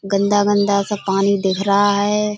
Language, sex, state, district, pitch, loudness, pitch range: Hindi, female, Uttar Pradesh, Budaun, 200 Hz, -17 LUFS, 200-205 Hz